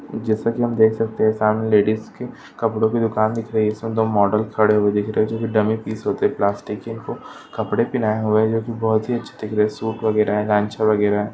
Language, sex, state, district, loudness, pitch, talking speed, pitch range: Hindi, male, Goa, North and South Goa, -20 LUFS, 110 Hz, 265 wpm, 105-110 Hz